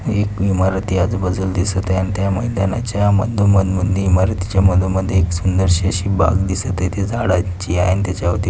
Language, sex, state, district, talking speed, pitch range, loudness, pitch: Marathi, male, Maharashtra, Pune, 175 wpm, 95-100 Hz, -17 LUFS, 95 Hz